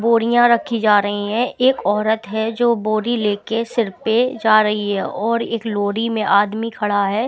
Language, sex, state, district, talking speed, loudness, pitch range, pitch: Hindi, female, Bihar, Patna, 190 wpm, -18 LUFS, 210-230 Hz, 220 Hz